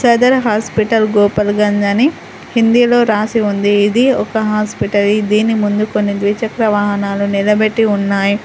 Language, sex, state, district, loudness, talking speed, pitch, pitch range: Telugu, female, Telangana, Adilabad, -13 LUFS, 130 wpm, 210 Hz, 205-225 Hz